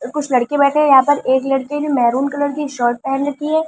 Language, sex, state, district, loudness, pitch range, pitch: Hindi, female, Delhi, New Delhi, -16 LUFS, 260-290 Hz, 280 Hz